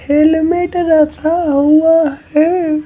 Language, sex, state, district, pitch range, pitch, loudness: Hindi, male, Bihar, Patna, 305-330 Hz, 315 Hz, -12 LUFS